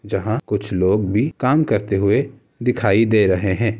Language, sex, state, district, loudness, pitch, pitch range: Hindi, male, Uttar Pradesh, Ghazipur, -18 LUFS, 110 Hz, 100-125 Hz